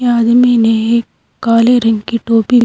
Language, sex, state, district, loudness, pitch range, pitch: Hindi, female, Uttar Pradesh, Saharanpur, -11 LUFS, 230-240 Hz, 230 Hz